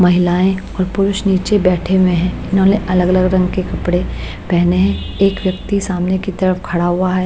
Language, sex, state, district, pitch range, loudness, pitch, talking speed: Hindi, female, Bihar, Patna, 180-195 Hz, -15 LUFS, 185 Hz, 180 wpm